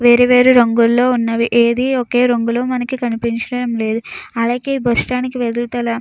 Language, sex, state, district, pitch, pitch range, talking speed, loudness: Telugu, female, Andhra Pradesh, Chittoor, 240 Hz, 235-250 Hz, 140 wpm, -15 LUFS